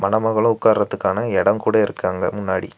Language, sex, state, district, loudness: Tamil, male, Tamil Nadu, Nilgiris, -19 LUFS